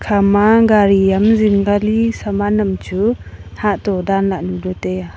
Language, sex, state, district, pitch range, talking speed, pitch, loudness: Wancho, female, Arunachal Pradesh, Longding, 190-210 Hz, 150 wpm, 205 Hz, -15 LUFS